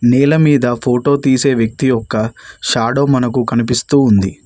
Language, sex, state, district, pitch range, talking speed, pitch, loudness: Telugu, male, Telangana, Mahabubabad, 115-135 Hz, 135 wpm, 125 Hz, -14 LUFS